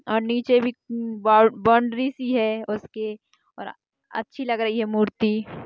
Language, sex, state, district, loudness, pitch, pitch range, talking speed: Hindi, female, Bihar, Madhepura, -22 LUFS, 225 Hz, 215-240 Hz, 160 wpm